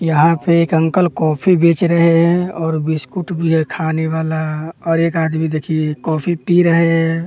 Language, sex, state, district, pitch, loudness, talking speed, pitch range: Hindi, male, Bihar, West Champaran, 165 Hz, -15 LUFS, 180 wpm, 160-170 Hz